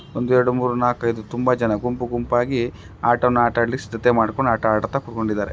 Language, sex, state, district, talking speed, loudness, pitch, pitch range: Kannada, male, Karnataka, Raichur, 165 wpm, -20 LUFS, 120 Hz, 115-125 Hz